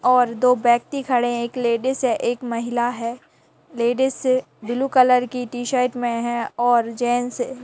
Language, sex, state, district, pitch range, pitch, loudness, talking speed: Hindi, female, Uttar Pradesh, Jalaun, 240-250 Hz, 245 Hz, -21 LUFS, 175 wpm